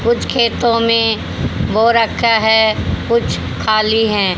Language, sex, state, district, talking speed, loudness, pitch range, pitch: Hindi, female, Haryana, Jhajjar, 125 wpm, -14 LUFS, 220-235 Hz, 225 Hz